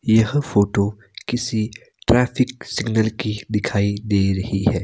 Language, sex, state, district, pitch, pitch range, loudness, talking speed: Hindi, male, Himachal Pradesh, Shimla, 110 Hz, 100-120 Hz, -21 LUFS, 125 wpm